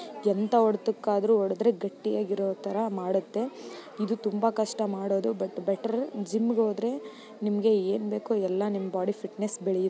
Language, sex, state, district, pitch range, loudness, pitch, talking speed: Kannada, female, Karnataka, Mysore, 195-220 Hz, -28 LUFS, 210 Hz, 135 wpm